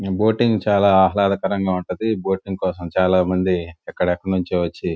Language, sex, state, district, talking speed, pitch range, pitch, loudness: Telugu, male, Andhra Pradesh, Guntur, 170 wpm, 90-100 Hz, 95 Hz, -19 LUFS